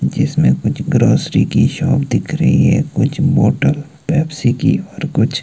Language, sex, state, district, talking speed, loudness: Hindi, male, Himachal Pradesh, Shimla, 155 wpm, -15 LUFS